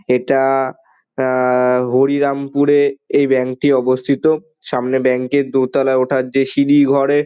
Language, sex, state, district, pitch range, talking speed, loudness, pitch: Bengali, male, West Bengal, Dakshin Dinajpur, 130-140 Hz, 140 wpm, -15 LUFS, 135 Hz